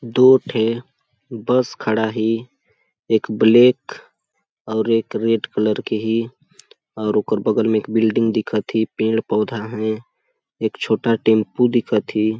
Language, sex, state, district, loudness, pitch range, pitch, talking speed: Awadhi, male, Chhattisgarh, Balrampur, -19 LUFS, 110-120 Hz, 110 Hz, 145 wpm